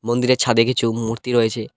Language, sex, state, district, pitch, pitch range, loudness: Bengali, male, West Bengal, Cooch Behar, 115 Hz, 115-125 Hz, -18 LUFS